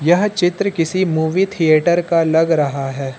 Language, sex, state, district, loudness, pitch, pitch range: Hindi, male, Uttar Pradesh, Lucknow, -16 LUFS, 165 Hz, 155-180 Hz